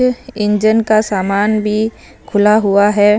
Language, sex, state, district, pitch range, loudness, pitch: Hindi, female, Punjab, Fazilka, 205-215 Hz, -14 LUFS, 210 Hz